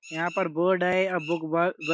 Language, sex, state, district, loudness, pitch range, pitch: Hindi, male, Uttar Pradesh, Budaun, -26 LUFS, 165-185 Hz, 175 Hz